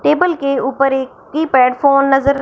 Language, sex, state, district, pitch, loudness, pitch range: Hindi, female, Punjab, Fazilka, 275 Hz, -14 LUFS, 265-290 Hz